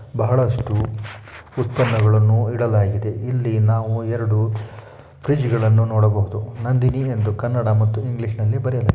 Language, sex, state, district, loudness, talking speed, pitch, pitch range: Kannada, male, Karnataka, Shimoga, -19 LUFS, 105 wpm, 110 Hz, 110-120 Hz